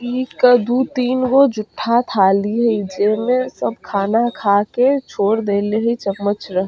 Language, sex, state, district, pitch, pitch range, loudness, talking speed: Bajjika, female, Bihar, Vaishali, 225 Hz, 205-250 Hz, -17 LUFS, 180 wpm